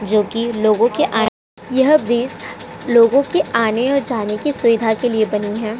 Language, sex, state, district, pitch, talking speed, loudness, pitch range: Hindi, female, Uttar Pradesh, Jalaun, 235 Hz, 185 wpm, -16 LUFS, 220-260 Hz